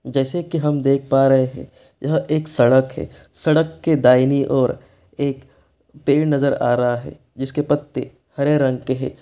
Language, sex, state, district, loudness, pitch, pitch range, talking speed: Hindi, male, Bihar, East Champaran, -19 LUFS, 135 Hz, 130-150 Hz, 175 wpm